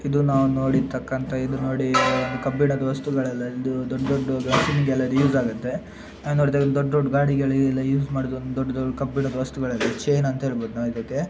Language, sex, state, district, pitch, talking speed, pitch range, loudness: Kannada, male, Karnataka, Dakshina Kannada, 135 Hz, 155 wpm, 130-140 Hz, -23 LUFS